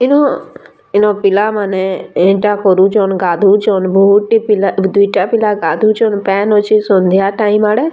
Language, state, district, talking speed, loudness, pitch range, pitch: Sambalpuri, Odisha, Sambalpur, 130 wpm, -12 LUFS, 195-210 Hz, 205 Hz